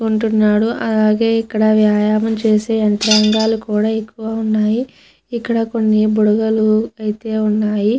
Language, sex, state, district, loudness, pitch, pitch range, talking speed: Telugu, female, Andhra Pradesh, Chittoor, -15 LUFS, 215 Hz, 215-225 Hz, 105 wpm